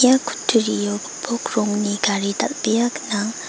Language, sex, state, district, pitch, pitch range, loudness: Garo, female, Meghalaya, West Garo Hills, 210 Hz, 200-235 Hz, -21 LUFS